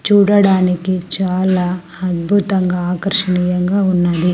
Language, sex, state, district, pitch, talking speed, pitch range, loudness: Telugu, female, Andhra Pradesh, Sri Satya Sai, 185 Hz, 70 wpm, 180-195 Hz, -15 LUFS